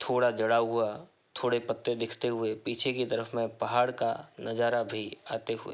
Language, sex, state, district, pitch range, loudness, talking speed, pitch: Hindi, male, Uttar Pradesh, Hamirpur, 115-120 Hz, -30 LUFS, 180 wpm, 115 Hz